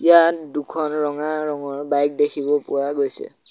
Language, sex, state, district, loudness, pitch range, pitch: Assamese, male, Assam, Sonitpur, -21 LUFS, 145-155 Hz, 145 Hz